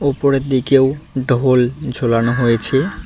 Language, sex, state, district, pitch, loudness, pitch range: Bengali, male, West Bengal, Cooch Behar, 130 Hz, -16 LUFS, 125-135 Hz